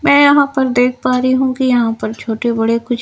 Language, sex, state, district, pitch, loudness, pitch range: Hindi, female, Bihar, Patna, 250 Hz, -14 LUFS, 235-260 Hz